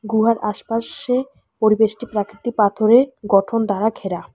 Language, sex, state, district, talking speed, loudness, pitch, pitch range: Bengali, female, West Bengal, Alipurduar, 110 wpm, -19 LUFS, 220 Hz, 210-230 Hz